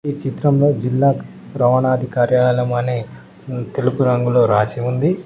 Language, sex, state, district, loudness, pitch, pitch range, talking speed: Telugu, male, Telangana, Mahabubabad, -17 LUFS, 125 Hz, 120-135 Hz, 115 wpm